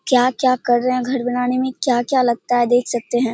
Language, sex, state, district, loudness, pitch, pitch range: Hindi, female, Bihar, Purnia, -18 LUFS, 245 Hz, 240-255 Hz